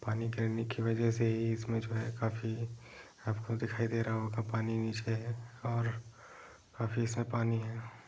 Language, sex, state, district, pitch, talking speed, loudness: Hindi, male, Bihar, Jahanabad, 115 Hz, 170 wpm, -35 LUFS